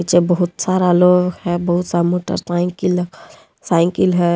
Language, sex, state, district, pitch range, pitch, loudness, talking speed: Hindi, female, Jharkhand, Deoghar, 175-180 Hz, 175 Hz, -16 LUFS, 150 wpm